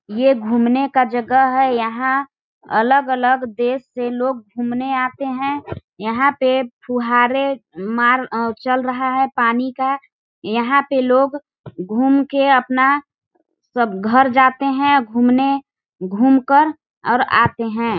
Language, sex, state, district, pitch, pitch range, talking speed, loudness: Hindi, female, Chhattisgarh, Balrampur, 260 Hz, 240-270 Hz, 130 wpm, -17 LUFS